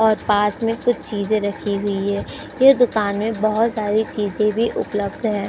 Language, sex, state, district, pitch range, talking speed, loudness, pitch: Hindi, female, Uttar Pradesh, Jyotiba Phule Nagar, 205-225 Hz, 185 wpm, -20 LUFS, 215 Hz